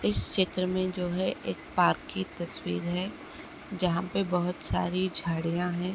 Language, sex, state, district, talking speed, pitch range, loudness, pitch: Hindi, female, Chhattisgarh, Kabirdham, 170 wpm, 170-185 Hz, -27 LUFS, 180 Hz